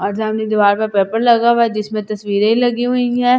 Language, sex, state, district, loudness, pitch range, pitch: Hindi, female, Delhi, New Delhi, -15 LUFS, 215-240 Hz, 220 Hz